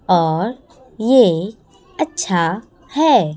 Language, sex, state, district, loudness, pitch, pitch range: Hindi, female, Chhattisgarh, Raipur, -17 LUFS, 215 Hz, 170-265 Hz